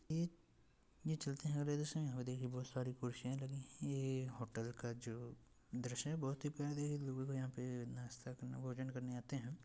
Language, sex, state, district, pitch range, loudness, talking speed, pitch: Hindi, male, Uttar Pradesh, Etah, 125-145 Hz, -45 LUFS, 180 wpm, 130 Hz